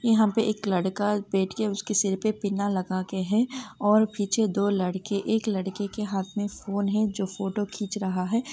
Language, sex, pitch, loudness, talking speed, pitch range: Hindi, female, 205 Hz, -27 LUFS, 155 wpm, 195-215 Hz